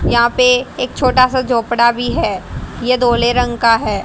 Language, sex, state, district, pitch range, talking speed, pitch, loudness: Hindi, female, Haryana, Jhajjar, 235-255 Hz, 195 wpm, 240 Hz, -14 LUFS